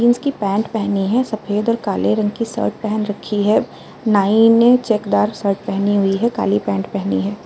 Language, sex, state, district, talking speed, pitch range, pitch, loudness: Hindi, female, Uttar Pradesh, Jalaun, 200 wpm, 200-230 Hz, 210 Hz, -17 LUFS